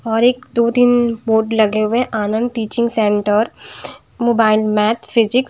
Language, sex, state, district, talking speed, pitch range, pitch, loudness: Hindi, female, Bihar, Patna, 155 wpm, 215-240 Hz, 225 Hz, -16 LUFS